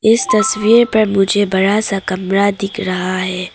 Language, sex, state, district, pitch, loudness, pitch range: Hindi, female, Arunachal Pradesh, Papum Pare, 200 Hz, -14 LUFS, 190-215 Hz